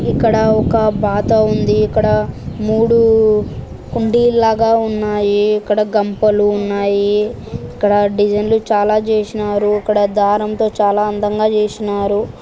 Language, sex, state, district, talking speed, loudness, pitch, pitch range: Telugu, female, Andhra Pradesh, Anantapur, 100 wpm, -15 LUFS, 210 Hz, 205-220 Hz